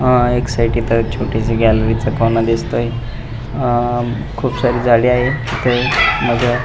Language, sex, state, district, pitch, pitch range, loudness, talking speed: Marathi, male, Maharashtra, Pune, 120 Hz, 115-125 Hz, -16 LUFS, 135 wpm